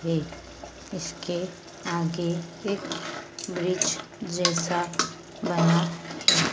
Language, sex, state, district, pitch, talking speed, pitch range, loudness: Hindi, female, Madhya Pradesh, Dhar, 175 Hz, 65 wpm, 170-180 Hz, -27 LUFS